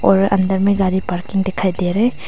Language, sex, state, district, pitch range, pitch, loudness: Hindi, female, Arunachal Pradesh, Longding, 185-195 Hz, 190 Hz, -17 LUFS